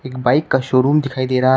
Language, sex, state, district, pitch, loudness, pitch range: Hindi, male, Uttar Pradesh, Shamli, 130 Hz, -17 LUFS, 130-140 Hz